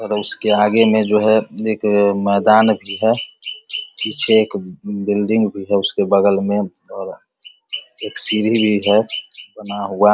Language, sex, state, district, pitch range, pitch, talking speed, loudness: Hindi, male, Bihar, Vaishali, 100-110 Hz, 105 Hz, 150 wpm, -17 LUFS